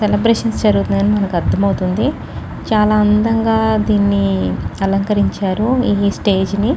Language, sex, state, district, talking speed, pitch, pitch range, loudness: Telugu, female, Telangana, Nalgonda, 105 wpm, 205 Hz, 190-220 Hz, -15 LUFS